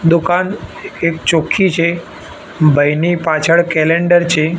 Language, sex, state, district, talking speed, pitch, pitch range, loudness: Gujarati, male, Gujarat, Gandhinagar, 105 wpm, 170 Hz, 160-175 Hz, -13 LUFS